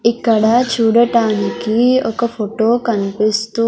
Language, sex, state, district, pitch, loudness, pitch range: Telugu, female, Andhra Pradesh, Sri Satya Sai, 230 Hz, -15 LUFS, 220-235 Hz